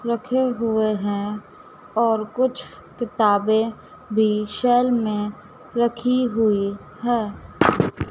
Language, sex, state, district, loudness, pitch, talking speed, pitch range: Hindi, female, Madhya Pradesh, Dhar, -22 LUFS, 225 Hz, 90 wpm, 210-245 Hz